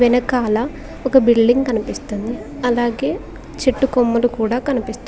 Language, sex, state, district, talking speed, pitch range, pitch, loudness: Telugu, female, Telangana, Mahabubabad, 95 wpm, 235-265 Hz, 245 Hz, -18 LUFS